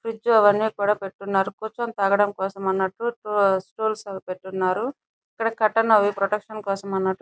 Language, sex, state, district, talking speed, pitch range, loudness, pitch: Telugu, female, Andhra Pradesh, Chittoor, 125 wpm, 195-220 Hz, -23 LUFS, 205 Hz